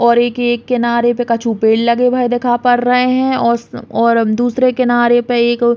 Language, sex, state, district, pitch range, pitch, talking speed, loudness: Bundeli, female, Uttar Pradesh, Hamirpur, 235-245 Hz, 240 Hz, 220 wpm, -13 LUFS